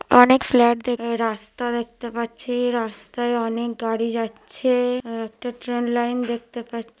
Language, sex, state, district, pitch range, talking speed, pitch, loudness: Bengali, female, West Bengal, North 24 Parganas, 230-245 Hz, 130 wpm, 235 Hz, -22 LUFS